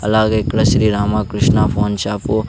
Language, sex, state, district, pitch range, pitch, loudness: Telugu, male, Andhra Pradesh, Sri Satya Sai, 105-110 Hz, 105 Hz, -16 LUFS